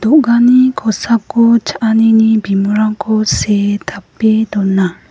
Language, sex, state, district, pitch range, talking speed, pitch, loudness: Garo, female, Meghalaya, West Garo Hills, 205-235 Hz, 80 wpm, 220 Hz, -12 LUFS